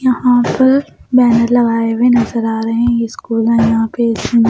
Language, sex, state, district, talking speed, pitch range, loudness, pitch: Hindi, female, Punjab, Pathankot, 215 wpm, 230-245 Hz, -13 LUFS, 235 Hz